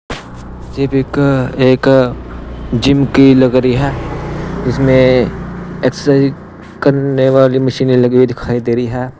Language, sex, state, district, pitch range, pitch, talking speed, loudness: Hindi, male, Punjab, Pathankot, 125-140 Hz, 130 Hz, 135 wpm, -12 LUFS